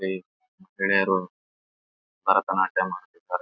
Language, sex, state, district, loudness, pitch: Kannada, male, Karnataka, Raichur, -25 LUFS, 95 Hz